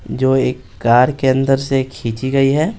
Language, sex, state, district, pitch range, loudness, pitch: Hindi, male, Bihar, Patna, 125-135 Hz, -16 LUFS, 130 Hz